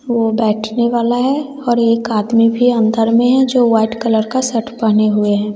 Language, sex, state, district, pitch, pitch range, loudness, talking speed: Hindi, female, Bihar, West Champaran, 230 Hz, 220-245 Hz, -14 LUFS, 205 wpm